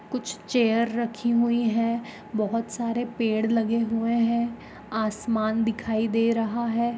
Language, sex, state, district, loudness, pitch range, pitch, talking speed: Magahi, female, Bihar, Gaya, -25 LUFS, 220-235 Hz, 230 Hz, 145 wpm